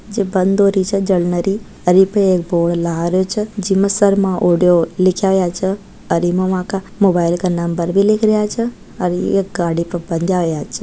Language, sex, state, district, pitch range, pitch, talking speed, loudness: Marwari, female, Rajasthan, Nagaur, 175-195 Hz, 185 Hz, 200 wpm, -16 LUFS